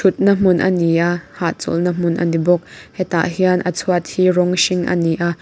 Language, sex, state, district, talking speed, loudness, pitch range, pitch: Mizo, female, Mizoram, Aizawl, 220 wpm, -17 LUFS, 170-185 Hz, 175 Hz